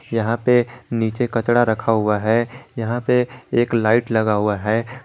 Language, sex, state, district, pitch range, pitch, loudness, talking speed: Hindi, male, Jharkhand, Garhwa, 110-120 Hz, 115 Hz, -19 LUFS, 165 wpm